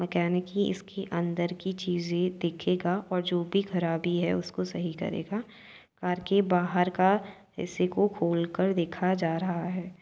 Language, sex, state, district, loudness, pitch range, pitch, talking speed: Hindi, female, Uttar Pradesh, Jyotiba Phule Nagar, -29 LUFS, 175-190 Hz, 180 Hz, 160 wpm